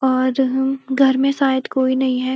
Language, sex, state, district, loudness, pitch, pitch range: Hindi, female, Uttarakhand, Uttarkashi, -18 LUFS, 265 Hz, 260-270 Hz